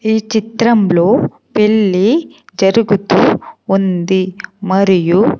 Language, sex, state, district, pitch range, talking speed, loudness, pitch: Telugu, female, Andhra Pradesh, Sri Satya Sai, 190-220 Hz, 65 wpm, -13 LUFS, 200 Hz